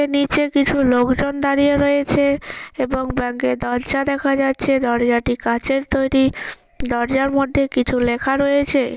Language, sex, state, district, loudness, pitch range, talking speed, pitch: Bengali, female, West Bengal, Kolkata, -18 LUFS, 245-280 Hz, 135 wpm, 270 Hz